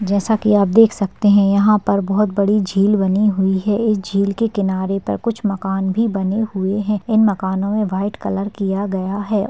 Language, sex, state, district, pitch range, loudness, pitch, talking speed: Hindi, female, Uttarakhand, Tehri Garhwal, 195-210 Hz, -17 LUFS, 200 Hz, 210 wpm